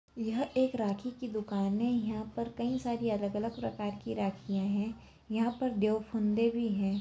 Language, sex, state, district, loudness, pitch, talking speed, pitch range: Kumaoni, female, Uttarakhand, Tehri Garhwal, -33 LUFS, 220 Hz, 190 wpm, 205-235 Hz